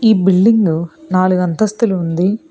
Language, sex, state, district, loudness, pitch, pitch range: Telugu, female, Telangana, Hyderabad, -14 LUFS, 185 Hz, 175-215 Hz